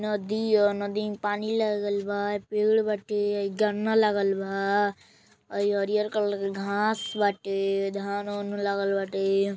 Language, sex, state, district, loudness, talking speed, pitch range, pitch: Bhojpuri, male, Uttar Pradesh, Gorakhpur, -27 LUFS, 145 wpm, 200-210 Hz, 205 Hz